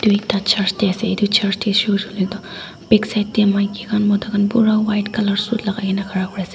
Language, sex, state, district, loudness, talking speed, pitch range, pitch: Nagamese, female, Nagaland, Dimapur, -18 LUFS, 230 wpm, 200-210 Hz, 205 Hz